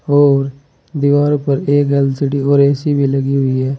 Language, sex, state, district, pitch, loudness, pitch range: Hindi, male, Uttar Pradesh, Saharanpur, 140 Hz, -14 LUFS, 135-145 Hz